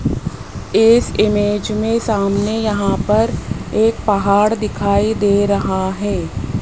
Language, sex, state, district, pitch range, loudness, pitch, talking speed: Hindi, male, Rajasthan, Jaipur, 200-215 Hz, -16 LUFS, 205 Hz, 110 wpm